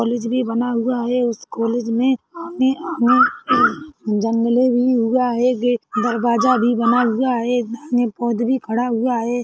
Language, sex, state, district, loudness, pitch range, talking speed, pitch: Hindi, female, Chhattisgarh, Rajnandgaon, -18 LUFS, 235-250 Hz, 125 wpm, 245 Hz